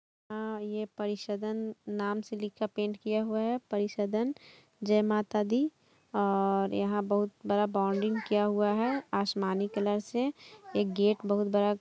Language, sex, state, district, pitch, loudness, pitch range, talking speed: Hindi, female, Jharkhand, Jamtara, 210 Hz, -31 LUFS, 205-215 Hz, 140 wpm